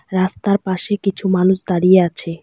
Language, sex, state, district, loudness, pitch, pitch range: Bengali, female, West Bengal, Alipurduar, -17 LUFS, 185 Hz, 180-195 Hz